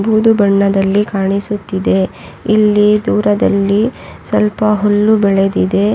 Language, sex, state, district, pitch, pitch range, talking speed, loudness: Kannada, female, Karnataka, Raichur, 205 Hz, 195-210 Hz, 140 wpm, -13 LUFS